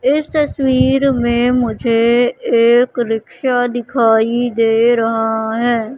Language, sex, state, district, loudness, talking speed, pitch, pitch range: Hindi, female, Madhya Pradesh, Katni, -14 LUFS, 100 wpm, 240 Hz, 230-250 Hz